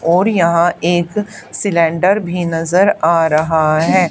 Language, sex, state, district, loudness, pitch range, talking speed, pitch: Hindi, female, Haryana, Charkhi Dadri, -14 LUFS, 165-190 Hz, 130 wpm, 170 Hz